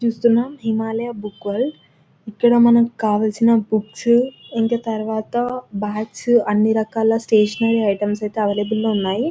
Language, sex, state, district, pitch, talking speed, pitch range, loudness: Telugu, female, Telangana, Nalgonda, 220 Hz, 105 wpm, 210-235 Hz, -19 LUFS